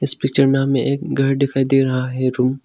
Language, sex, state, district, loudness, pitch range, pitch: Hindi, male, Arunachal Pradesh, Longding, -17 LUFS, 130-135 Hz, 135 Hz